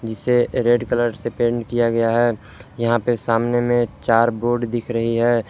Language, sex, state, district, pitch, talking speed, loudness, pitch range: Hindi, male, Jharkhand, Palamu, 120 Hz, 185 wpm, -19 LUFS, 115-120 Hz